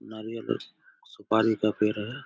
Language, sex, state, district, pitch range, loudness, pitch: Hindi, male, Bihar, Saharsa, 105-130 Hz, -28 LUFS, 110 Hz